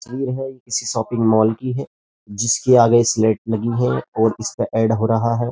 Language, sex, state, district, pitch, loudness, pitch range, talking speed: Hindi, male, Uttar Pradesh, Jyotiba Phule Nagar, 115 Hz, -18 LUFS, 110-120 Hz, 195 wpm